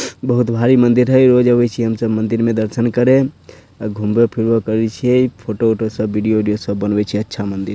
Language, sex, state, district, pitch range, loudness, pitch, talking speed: Bhojpuri, male, Bihar, Sitamarhi, 105-120 Hz, -15 LUFS, 115 Hz, 215 wpm